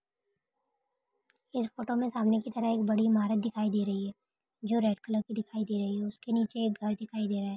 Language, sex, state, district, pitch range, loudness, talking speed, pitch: Hindi, female, Jharkhand, Jamtara, 210-235 Hz, -31 LUFS, 240 wpm, 220 Hz